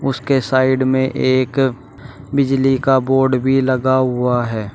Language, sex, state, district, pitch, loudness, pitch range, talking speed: Hindi, male, Uttar Pradesh, Shamli, 130 Hz, -16 LUFS, 130-135 Hz, 140 wpm